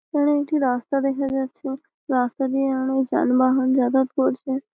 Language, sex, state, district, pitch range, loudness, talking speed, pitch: Bengali, female, West Bengal, Malda, 260-275 Hz, -22 LUFS, 140 wpm, 265 Hz